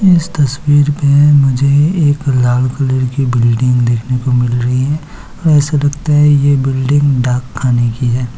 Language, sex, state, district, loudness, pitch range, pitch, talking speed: Hindi, male, Bihar, Kishanganj, -12 LUFS, 125-145 Hz, 135 Hz, 165 wpm